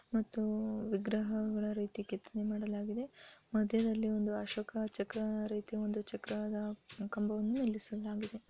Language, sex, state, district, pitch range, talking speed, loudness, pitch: Kannada, female, Karnataka, Bijapur, 210-220 Hz, 100 wpm, -38 LUFS, 215 Hz